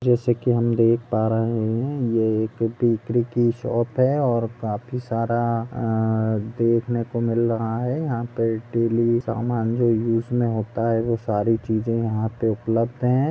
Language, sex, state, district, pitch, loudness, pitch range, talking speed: Hindi, female, Goa, North and South Goa, 115 Hz, -22 LUFS, 115-120 Hz, 175 wpm